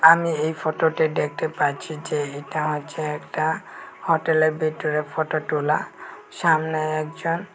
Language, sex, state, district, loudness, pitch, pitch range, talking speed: Bengali, male, Tripura, West Tripura, -23 LUFS, 155 Hz, 150-160 Hz, 120 wpm